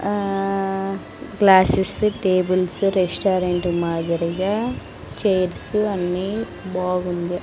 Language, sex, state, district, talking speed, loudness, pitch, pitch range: Telugu, female, Andhra Pradesh, Sri Satya Sai, 75 wpm, -21 LUFS, 185 Hz, 180-195 Hz